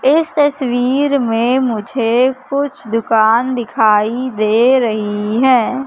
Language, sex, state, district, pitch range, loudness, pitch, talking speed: Hindi, female, Madhya Pradesh, Katni, 225-265 Hz, -14 LUFS, 245 Hz, 100 wpm